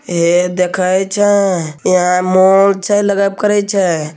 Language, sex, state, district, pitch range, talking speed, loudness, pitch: Hindi, male, Bihar, Begusarai, 180-200 Hz, 130 wpm, -13 LUFS, 190 Hz